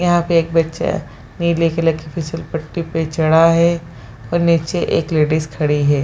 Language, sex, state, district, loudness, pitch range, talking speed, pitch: Hindi, female, Bihar, Jahanabad, -17 LUFS, 155-170 Hz, 180 wpm, 165 Hz